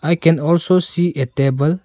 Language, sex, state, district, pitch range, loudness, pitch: English, male, Arunachal Pradesh, Longding, 145-175 Hz, -16 LUFS, 165 Hz